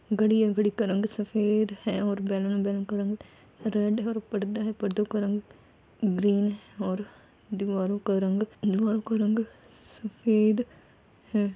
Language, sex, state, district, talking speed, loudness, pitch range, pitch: Hindi, female, Bihar, Gopalganj, 170 wpm, -28 LUFS, 200-215 Hz, 210 Hz